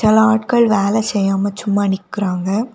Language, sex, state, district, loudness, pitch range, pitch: Tamil, female, Tamil Nadu, Kanyakumari, -16 LUFS, 200-220 Hz, 205 Hz